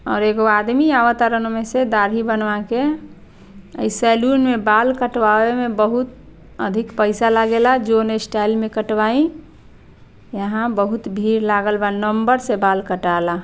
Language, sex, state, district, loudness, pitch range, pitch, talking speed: Bhojpuri, female, Bihar, Saran, -17 LUFS, 210-235 Hz, 220 Hz, 145 wpm